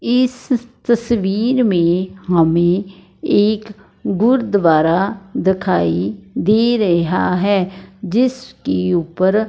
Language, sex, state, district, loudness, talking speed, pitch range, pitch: Hindi, female, Punjab, Fazilka, -16 LUFS, 75 wpm, 175-230 Hz, 195 Hz